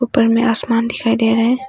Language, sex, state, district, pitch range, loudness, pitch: Hindi, female, Arunachal Pradesh, Longding, 230-240 Hz, -15 LUFS, 230 Hz